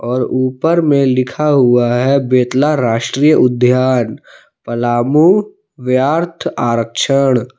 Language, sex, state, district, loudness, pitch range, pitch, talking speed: Hindi, male, Jharkhand, Palamu, -13 LUFS, 125-145 Hz, 130 Hz, 95 wpm